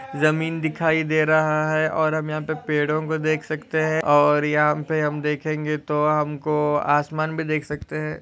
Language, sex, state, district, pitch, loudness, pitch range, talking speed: Hindi, male, Maharashtra, Solapur, 155 Hz, -22 LUFS, 150-155 Hz, 190 wpm